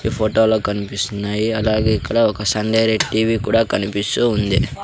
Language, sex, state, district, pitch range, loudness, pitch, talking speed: Telugu, male, Andhra Pradesh, Sri Satya Sai, 105-110 Hz, -18 LUFS, 110 Hz, 160 wpm